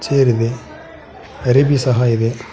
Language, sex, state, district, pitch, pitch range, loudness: Kannada, male, Karnataka, Koppal, 125 Hz, 115-135 Hz, -16 LUFS